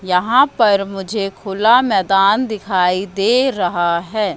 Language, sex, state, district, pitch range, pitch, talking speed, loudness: Hindi, female, Madhya Pradesh, Katni, 185-225 Hz, 195 Hz, 125 wpm, -15 LUFS